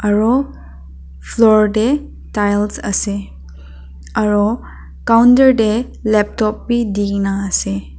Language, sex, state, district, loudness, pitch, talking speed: Nagamese, female, Nagaland, Dimapur, -15 LUFS, 205 Hz, 90 wpm